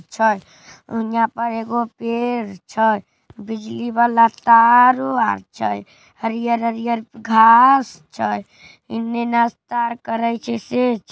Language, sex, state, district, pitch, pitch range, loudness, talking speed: Magahi, male, Bihar, Samastipur, 230 Hz, 220-235 Hz, -18 LUFS, 110 wpm